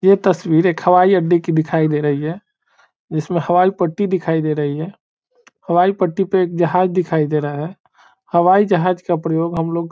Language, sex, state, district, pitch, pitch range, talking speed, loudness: Hindi, male, Bihar, Saran, 175 Hz, 160-185 Hz, 200 wpm, -17 LUFS